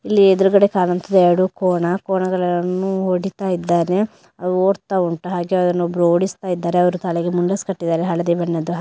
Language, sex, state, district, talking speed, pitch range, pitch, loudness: Kannada, female, Karnataka, Dakshina Kannada, 155 wpm, 175-190 Hz, 180 Hz, -18 LUFS